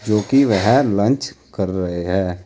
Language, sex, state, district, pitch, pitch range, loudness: Hindi, male, Uttar Pradesh, Saharanpur, 95 Hz, 90-105 Hz, -18 LUFS